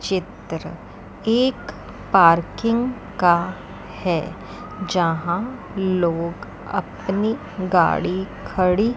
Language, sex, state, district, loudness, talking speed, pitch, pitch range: Hindi, female, Chandigarh, Chandigarh, -21 LUFS, 65 wpm, 190 Hz, 175-220 Hz